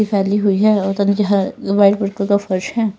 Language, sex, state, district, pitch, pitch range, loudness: Hindi, female, Punjab, Fazilka, 200 Hz, 195-205 Hz, -16 LUFS